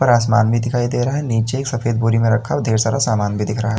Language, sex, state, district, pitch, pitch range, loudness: Hindi, male, Uttar Pradesh, Lalitpur, 115 Hz, 110-120 Hz, -17 LUFS